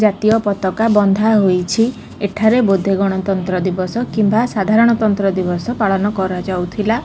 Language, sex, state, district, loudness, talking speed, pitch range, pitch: Odia, female, Odisha, Khordha, -16 LUFS, 120 wpm, 190-220 Hz, 205 Hz